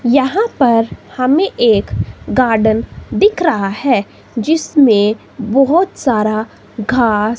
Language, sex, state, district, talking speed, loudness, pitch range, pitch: Hindi, female, Himachal Pradesh, Shimla, 95 wpm, -14 LUFS, 220-300 Hz, 255 Hz